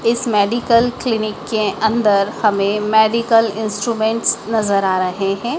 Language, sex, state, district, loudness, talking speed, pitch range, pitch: Hindi, female, Madhya Pradesh, Dhar, -16 LUFS, 130 wpm, 205-230 Hz, 220 Hz